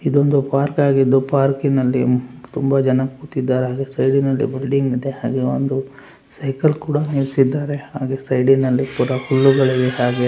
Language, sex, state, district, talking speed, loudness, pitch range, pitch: Kannada, male, Karnataka, Raichur, 145 wpm, -18 LUFS, 130-140 Hz, 135 Hz